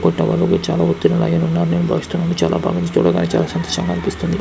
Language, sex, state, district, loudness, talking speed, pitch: Telugu, male, Karnataka, Dharwad, -17 LUFS, 40 wpm, 165 Hz